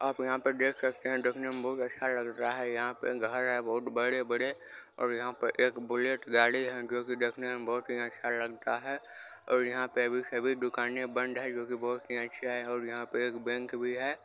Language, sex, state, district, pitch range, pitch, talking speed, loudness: Hindi, male, Bihar, Supaul, 120-130 Hz, 125 Hz, 240 wpm, -32 LUFS